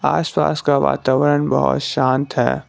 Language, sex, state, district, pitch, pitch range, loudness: Hindi, male, Jharkhand, Garhwa, 140 Hz, 130-145 Hz, -17 LUFS